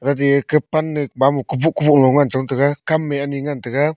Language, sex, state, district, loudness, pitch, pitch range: Wancho, male, Arunachal Pradesh, Longding, -17 LUFS, 140 Hz, 135-150 Hz